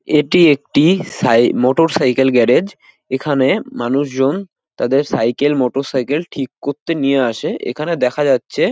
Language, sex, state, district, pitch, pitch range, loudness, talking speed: Bengali, male, West Bengal, North 24 Parganas, 140 Hz, 130-150 Hz, -16 LUFS, 125 wpm